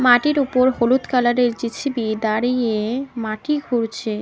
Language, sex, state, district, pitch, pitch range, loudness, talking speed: Bengali, female, West Bengal, Cooch Behar, 240 Hz, 225-260 Hz, -20 LUFS, 115 wpm